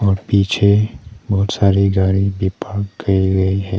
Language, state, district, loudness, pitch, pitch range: Hindi, Arunachal Pradesh, Papum Pare, -16 LUFS, 100 Hz, 95-100 Hz